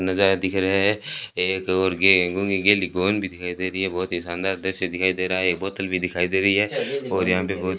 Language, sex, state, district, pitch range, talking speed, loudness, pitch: Hindi, male, Rajasthan, Bikaner, 90-95 Hz, 240 wpm, -22 LUFS, 95 Hz